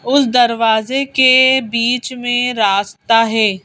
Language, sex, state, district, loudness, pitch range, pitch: Hindi, female, Madhya Pradesh, Bhopal, -13 LUFS, 225-260 Hz, 245 Hz